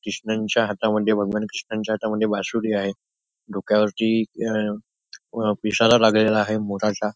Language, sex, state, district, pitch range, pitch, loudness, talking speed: Marathi, male, Maharashtra, Nagpur, 105-110 Hz, 110 Hz, -22 LUFS, 115 wpm